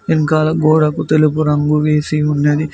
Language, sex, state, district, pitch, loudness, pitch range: Telugu, male, Telangana, Mahabubabad, 155 Hz, -14 LUFS, 150-155 Hz